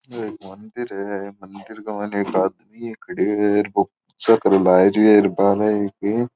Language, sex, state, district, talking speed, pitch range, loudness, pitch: Marwari, male, Rajasthan, Churu, 150 wpm, 100-110 Hz, -19 LUFS, 105 Hz